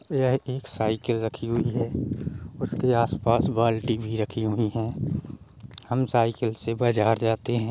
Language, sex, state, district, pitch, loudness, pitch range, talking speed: Hindi, male, Uttar Pradesh, Jalaun, 115 Hz, -26 LUFS, 110-125 Hz, 155 wpm